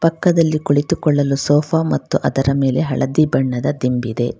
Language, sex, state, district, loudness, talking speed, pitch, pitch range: Kannada, female, Karnataka, Bangalore, -17 LUFS, 120 wpm, 145 Hz, 130-160 Hz